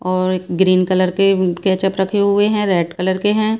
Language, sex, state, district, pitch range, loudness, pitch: Hindi, female, Bihar, Katihar, 185-200 Hz, -16 LUFS, 190 Hz